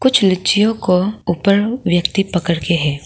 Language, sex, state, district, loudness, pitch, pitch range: Hindi, female, Arunachal Pradesh, Lower Dibang Valley, -16 LUFS, 190 Hz, 175-210 Hz